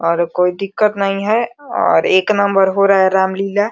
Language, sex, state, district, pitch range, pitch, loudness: Hindi, female, Uttar Pradesh, Deoria, 190-205 Hz, 195 Hz, -15 LUFS